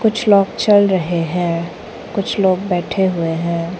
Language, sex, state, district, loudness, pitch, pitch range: Hindi, female, Arunachal Pradesh, Lower Dibang Valley, -16 LUFS, 185 Hz, 170-200 Hz